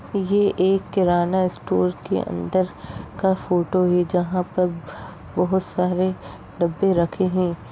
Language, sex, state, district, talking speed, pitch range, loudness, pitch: Hindi, female, Uttar Pradesh, Jyotiba Phule Nagar, 125 wpm, 175-185 Hz, -22 LUFS, 180 Hz